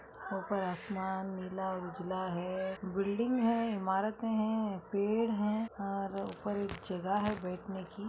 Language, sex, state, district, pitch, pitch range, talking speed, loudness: Hindi, female, Uttarakhand, Tehri Garhwal, 195 Hz, 190-210 Hz, 135 wpm, -35 LUFS